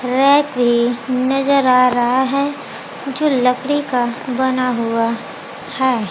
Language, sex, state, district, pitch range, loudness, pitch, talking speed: Hindi, female, Bihar, Kaimur, 245-275 Hz, -16 LUFS, 255 Hz, 120 wpm